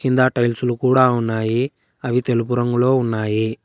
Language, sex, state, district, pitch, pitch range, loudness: Telugu, male, Telangana, Hyderabad, 120 Hz, 115-130 Hz, -18 LUFS